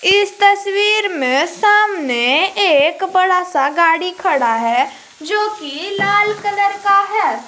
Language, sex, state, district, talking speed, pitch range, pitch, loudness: Hindi, female, Jharkhand, Garhwa, 130 wpm, 310-405 Hz, 390 Hz, -15 LUFS